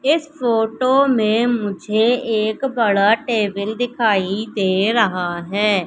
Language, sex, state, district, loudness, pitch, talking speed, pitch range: Hindi, female, Madhya Pradesh, Katni, -18 LUFS, 220 Hz, 110 wpm, 200-240 Hz